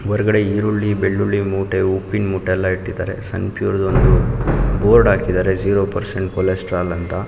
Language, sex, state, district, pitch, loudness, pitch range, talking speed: Kannada, male, Karnataka, Mysore, 100 Hz, -18 LUFS, 95-105 Hz, 150 wpm